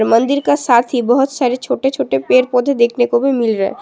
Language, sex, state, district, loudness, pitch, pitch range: Hindi, female, Assam, Sonitpur, -14 LUFS, 245 Hz, 235-270 Hz